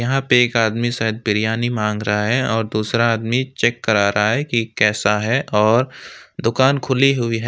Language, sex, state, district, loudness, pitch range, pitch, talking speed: Hindi, male, West Bengal, Alipurduar, -18 LUFS, 110-125 Hz, 115 Hz, 190 wpm